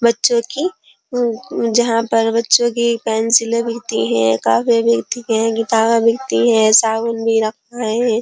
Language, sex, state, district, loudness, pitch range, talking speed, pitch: Hindi, female, Uttar Pradesh, Jyotiba Phule Nagar, -16 LUFS, 225-235 Hz, 145 wpm, 230 Hz